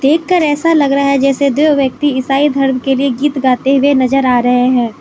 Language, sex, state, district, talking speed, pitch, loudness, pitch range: Hindi, female, Manipur, Imphal West, 225 wpm, 275 Hz, -12 LUFS, 260-290 Hz